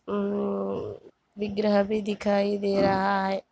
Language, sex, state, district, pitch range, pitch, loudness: Hindi, female, Andhra Pradesh, Chittoor, 195-205 Hz, 200 Hz, -26 LUFS